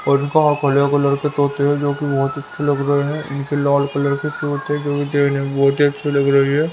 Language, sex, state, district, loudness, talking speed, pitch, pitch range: Hindi, male, Haryana, Rohtak, -18 LUFS, 260 wpm, 145 Hz, 140-145 Hz